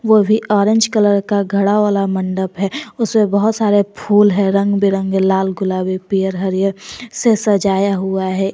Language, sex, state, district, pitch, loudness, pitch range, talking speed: Hindi, female, Jharkhand, Garhwa, 200 Hz, -15 LUFS, 190-210 Hz, 170 wpm